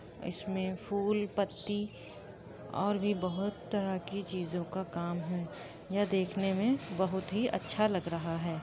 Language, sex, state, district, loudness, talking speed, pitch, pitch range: Hindi, female, Uttar Pradesh, Budaun, -34 LUFS, 145 wpm, 190 Hz, 170-205 Hz